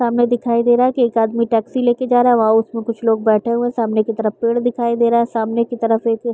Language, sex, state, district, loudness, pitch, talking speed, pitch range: Hindi, female, Uttar Pradesh, Gorakhpur, -16 LUFS, 235 Hz, 305 wpm, 225-240 Hz